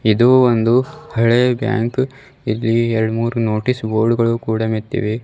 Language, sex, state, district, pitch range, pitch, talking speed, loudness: Kannada, male, Karnataka, Bidar, 110-125 Hz, 115 Hz, 140 wpm, -17 LUFS